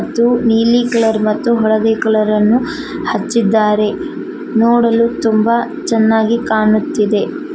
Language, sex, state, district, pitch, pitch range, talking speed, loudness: Kannada, female, Karnataka, Koppal, 230 Hz, 220-245 Hz, 95 wpm, -14 LUFS